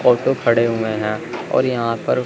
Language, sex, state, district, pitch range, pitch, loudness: Hindi, male, Chandigarh, Chandigarh, 115-125 Hz, 115 Hz, -19 LUFS